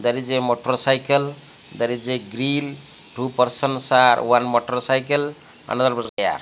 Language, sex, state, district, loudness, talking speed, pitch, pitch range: English, male, Odisha, Malkangiri, -20 LUFS, 150 wpm, 130 Hz, 120-140 Hz